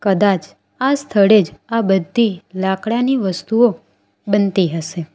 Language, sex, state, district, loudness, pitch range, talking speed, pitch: Gujarati, female, Gujarat, Valsad, -17 LUFS, 185-230 Hz, 115 wpm, 200 Hz